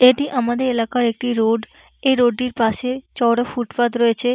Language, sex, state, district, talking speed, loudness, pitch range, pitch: Bengali, female, West Bengal, North 24 Parganas, 180 wpm, -19 LUFS, 235-250 Hz, 245 Hz